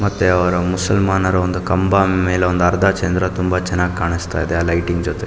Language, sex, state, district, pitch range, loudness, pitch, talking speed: Kannada, male, Karnataka, Mysore, 90-95 Hz, -17 LUFS, 90 Hz, 170 wpm